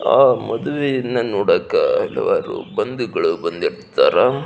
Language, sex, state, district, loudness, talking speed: Kannada, male, Karnataka, Belgaum, -18 LUFS, 80 wpm